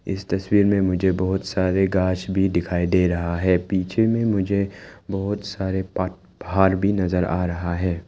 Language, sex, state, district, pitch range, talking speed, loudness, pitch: Hindi, male, Arunachal Pradesh, Lower Dibang Valley, 90-100 Hz, 170 wpm, -22 LUFS, 95 Hz